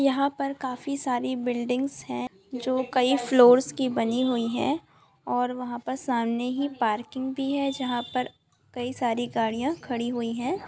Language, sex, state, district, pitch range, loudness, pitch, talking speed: Hindi, female, Andhra Pradesh, Chittoor, 240-270 Hz, -26 LUFS, 250 Hz, 165 wpm